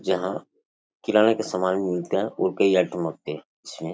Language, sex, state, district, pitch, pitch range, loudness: Rajasthani, male, Rajasthan, Churu, 95 Hz, 95-110 Hz, -23 LUFS